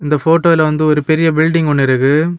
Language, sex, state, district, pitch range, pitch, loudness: Tamil, male, Tamil Nadu, Kanyakumari, 150-165 Hz, 155 Hz, -12 LUFS